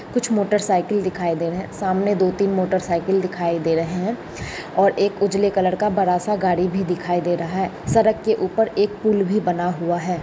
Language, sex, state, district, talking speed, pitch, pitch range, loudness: Hindi, male, Bihar, Bhagalpur, 210 wpm, 185 Hz, 180-205 Hz, -21 LUFS